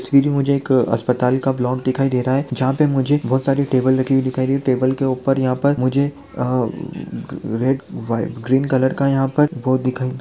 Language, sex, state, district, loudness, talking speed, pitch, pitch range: Hindi, male, Rajasthan, Churu, -19 LUFS, 225 wpm, 130 Hz, 130-140 Hz